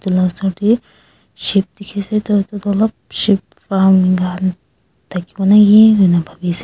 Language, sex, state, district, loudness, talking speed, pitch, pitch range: Nagamese, female, Nagaland, Kohima, -14 LUFS, 170 wpm, 195 Hz, 185-205 Hz